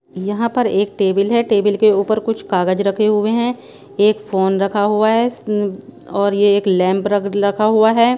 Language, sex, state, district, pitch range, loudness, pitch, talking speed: Hindi, female, Punjab, Pathankot, 200-220 Hz, -16 LUFS, 205 Hz, 190 wpm